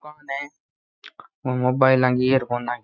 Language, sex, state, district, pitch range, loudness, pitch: Rajasthani, male, Rajasthan, Nagaur, 125-140 Hz, -21 LUFS, 130 Hz